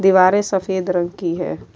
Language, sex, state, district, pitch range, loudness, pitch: Urdu, female, Uttar Pradesh, Budaun, 175-190 Hz, -18 LUFS, 185 Hz